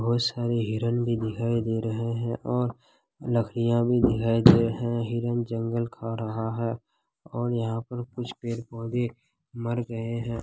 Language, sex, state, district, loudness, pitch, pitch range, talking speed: Hindi, male, Bihar, Kishanganj, -27 LUFS, 115 Hz, 115-120 Hz, 160 wpm